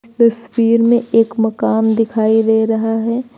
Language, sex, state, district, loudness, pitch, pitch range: Hindi, female, Uttar Pradesh, Lucknow, -14 LUFS, 225 Hz, 225-230 Hz